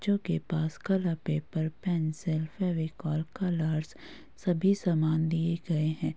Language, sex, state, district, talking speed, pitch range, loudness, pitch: Hindi, female, Uttar Pradesh, Jyotiba Phule Nagar, 125 wpm, 155-180 Hz, -30 LUFS, 165 Hz